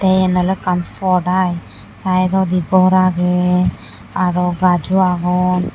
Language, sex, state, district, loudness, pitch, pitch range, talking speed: Chakma, female, Tripura, West Tripura, -16 LUFS, 180 Hz, 180-185 Hz, 115 wpm